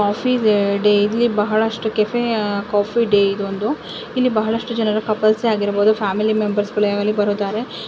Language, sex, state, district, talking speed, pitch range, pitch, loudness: Kannada, female, Karnataka, Chamarajanagar, 150 wpm, 205-220 Hz, 215 Hz, -18 LUFS